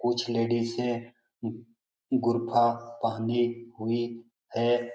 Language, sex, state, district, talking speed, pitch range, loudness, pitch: Hindi, male, Bihar, Lakhisarai, 95 wpm, 115-120 Hz, -29 LUFS, 120 Hz